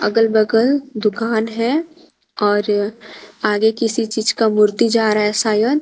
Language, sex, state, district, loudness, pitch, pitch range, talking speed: Hindi, female, Jharkhand, Garhwa, -17 LUFS, 220 Hz, 210-230 Hz, 145 wpm